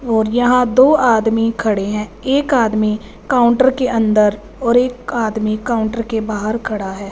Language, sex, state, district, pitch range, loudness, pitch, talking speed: Hindi, female, Punjab, Fazilka, 215-245 Hz, -16 LUFS, 225 Hz, 160 wpm